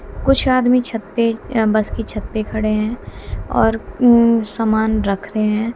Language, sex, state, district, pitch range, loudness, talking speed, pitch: Hindi, female, Haryana, Jhajjar, 215-235 Hz, -17 LUFS, 155 wpm, 225 Hz